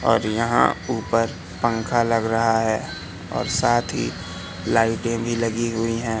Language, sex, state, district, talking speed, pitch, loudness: Hindi, male, Madhya Pradesh, Katni, 145 wpm, 115 Hz, -22 LUFS